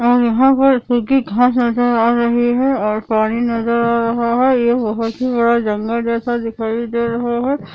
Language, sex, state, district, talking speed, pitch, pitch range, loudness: Hindi, female, Andhra Pradesh, Anantapur, 195 wpm, 235 Hz, 230-245 Hz, -16 LUFS